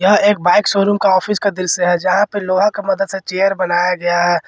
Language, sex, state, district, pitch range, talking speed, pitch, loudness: Hindi, male, Jharkhand, Ranchi, 180-205 Hz, 265 wpm, 195 Hz, -15 LUFS